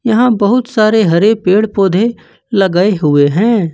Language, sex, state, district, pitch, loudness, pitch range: Hindi, male, Jharkhand, Ranchi, 210 Hz, -11 LUFS, 185-225 Hz